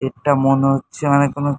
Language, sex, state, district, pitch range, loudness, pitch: Bengali, male, West Bengal, North 24 Parganas, 135-145 Hz, -17 LUFS, 135 Hz